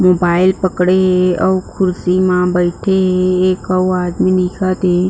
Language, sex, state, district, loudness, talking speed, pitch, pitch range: Chhattisgarhi, female, Chhattisgarh, Jashpur, -14 LUFS, 155 wpm, 185 Hz, 180-185 Hz